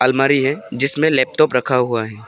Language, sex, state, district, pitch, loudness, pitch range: Hindi, male, Arunachal Pradesh, Papum Pare, 130 Hz, -16 LUFS, 125-140 Hz